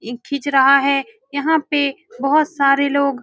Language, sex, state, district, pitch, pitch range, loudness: Hindi, female, Bihar, Saran, 280 Hz, 275-290 Hz, -17 LUFS